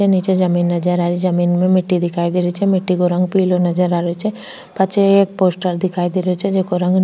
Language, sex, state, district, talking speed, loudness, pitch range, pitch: Rajasthani, female, Rajasthan, Nagaur, 255 wpm, -16 LUFS, 175-190 Hz, 180 Hz